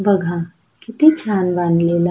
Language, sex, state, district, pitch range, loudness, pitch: Marathi, female, Maharashtra, Sindhudurg, 170-205 Hz, -16 LUFS, 175 Hz